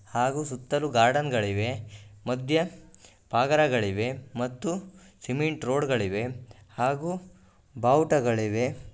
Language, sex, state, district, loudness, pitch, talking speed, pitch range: Kannada, male, Karnataka, Gulbarga, -27 LUFS, 125 Hz, 65 wpm, 110-145 Hz